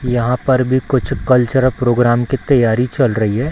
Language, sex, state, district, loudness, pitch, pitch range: Hindi, male, Bihar, Samastipur, -15 LUFS, 125 Hz, 120-130 Hz